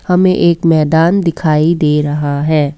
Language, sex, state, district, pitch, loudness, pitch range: Hindi, female, Assam, Kamrup Metropolitan, 160 Hz, -12 LUFS, 150-170 Hz